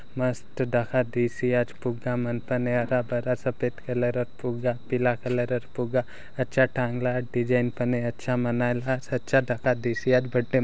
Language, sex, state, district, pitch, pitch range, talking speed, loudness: Halbi, male, Chhattisgarh, Bastar, 125 Hz, 120-125 Hz, 160 wpm, -26 LUFS